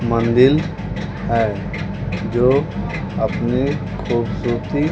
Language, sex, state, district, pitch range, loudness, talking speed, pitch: Hindi, male, Bihar, West Champaran, 105-135 Hz, -19 LUFS, 60 wpm, 120 Hz